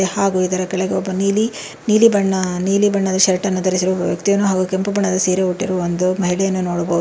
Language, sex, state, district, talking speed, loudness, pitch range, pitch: Kannada, female, Karnataka, Bangalore, 190 wpm, -17 LUFS, 185-195 Hz, 190 Hz